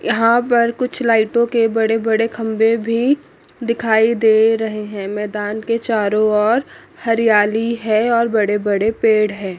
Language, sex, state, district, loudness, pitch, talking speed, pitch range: Hindi, female, Chandigarh, Chandigarh, -16 LUFS, 225 Hz, 140 wpm, 215-230 Hz